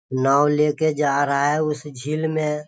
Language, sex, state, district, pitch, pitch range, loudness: Hindi, male, Bihar, Sitamarhi, 150 Hz, 140-155 Hz, -20 LUFS